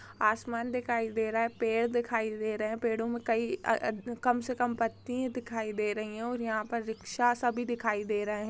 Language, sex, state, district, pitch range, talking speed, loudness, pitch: Hindi, female, Chhattisgarh, Rajnandgaon, 220-240 Hz, 235 wpm, -32 LUFS, 230 Hz